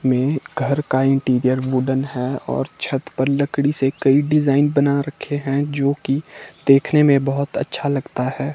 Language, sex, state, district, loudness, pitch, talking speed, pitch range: Hindi, male, Himachal Pradesh, Shimla, -19 LUFS, 140 Hz, 170 wpm, 130-145 Hz